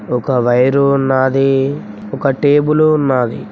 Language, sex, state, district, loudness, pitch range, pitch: Telugu, male, Telangana, Mahabubabad, -13 LUFS, 125-140 Hz, 135 Hz